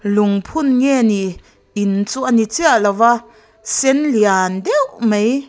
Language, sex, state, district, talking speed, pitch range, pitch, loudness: Mizo, female, Mizoram, Aizawl, 140 wpm, 205-260 Hz, 225 Hz, -15 LUFS